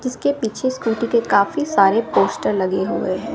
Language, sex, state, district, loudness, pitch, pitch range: Hindi, female, Bihar, West Champaran, -19 LUFS, 230 Hz, 200-260 Hz